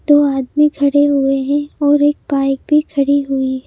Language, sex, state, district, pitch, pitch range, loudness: Hindi, female, Madhya Pradesh, Bhopal, 285 Hz, 275-290 Hz, -15 LUFS